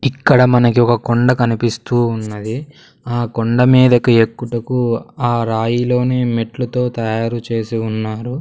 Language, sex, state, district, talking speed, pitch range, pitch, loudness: Telugu, male, Andhra Pradesh, Sri Satya Sai, 115 wpm, 115-125 Hz, 120 Hz, -16 LUFS